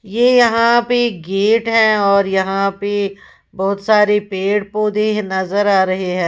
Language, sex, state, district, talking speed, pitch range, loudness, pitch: Hindi, female, Uttar Pradesh, Lalitpur, 155 wpm, 195-215 Hz, -15 LUFS, 205 Hz